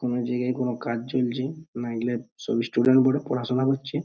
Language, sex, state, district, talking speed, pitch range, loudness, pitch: Bengali, male, West Bengal, Purulia, 165 wpm, 120-130 Hz, -25 LUFS, 125 Hz